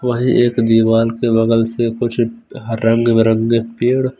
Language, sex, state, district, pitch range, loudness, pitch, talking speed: Hindi, male, Punjab, Fazilka, 115-120 Hz, -15 LUFS, 115 Hz, 130 wpm